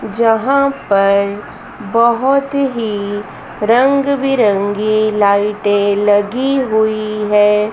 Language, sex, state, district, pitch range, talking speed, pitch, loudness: Hindi, female, Madhya Pradesh, Dhar, 205-255 Hz, 70 wpm, 215 Hz, -14 LUFS